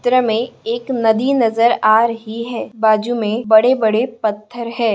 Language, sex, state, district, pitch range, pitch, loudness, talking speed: Hindi, female, Maharashtra, Sindhudurg, 220-240 Hz, 230 Hz, -16 LUFS, 170 wpm